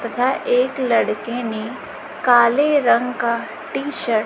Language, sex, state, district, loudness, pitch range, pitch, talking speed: Hindi, female, Chhattisgarh, Raipur, -19 LUFS, 235-255 Hz, 240 Hz, 140 wpm